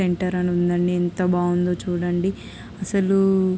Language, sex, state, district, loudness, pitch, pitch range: Telugu, female, Andhra Pradesh, Krishna, -21 LUFS, 180 Hz, 175-190 Hz